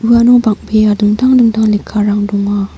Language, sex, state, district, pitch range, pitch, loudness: Garo, female, Meghalaya, North Garo Hills, 205-235 Hz, 215 Hz, -11 LUFS